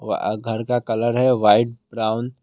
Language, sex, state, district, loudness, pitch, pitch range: Hindi, male, Assam, Kamrup Metropolitan, -20 LUFS, 115 Hz, 110-120 Hz